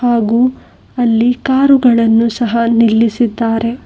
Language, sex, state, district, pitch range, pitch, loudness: Kannada, female, Karnataka, Bangalore, 230-245 Hz, 235 Hz, -12 LUFS